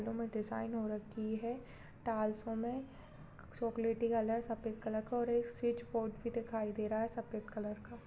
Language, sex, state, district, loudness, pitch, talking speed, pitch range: Hindi, female, Uttarakhand, Tehri Garhwal, -39 LUFS, 225 Hz, 170 wpm, 215-235 Hz